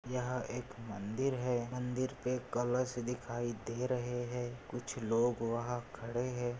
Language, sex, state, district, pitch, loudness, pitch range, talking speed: Hindi, male, Maharashtra, Nagpur, 125 Hz, -37 LUFS, 120-125 Hz, 145 wpm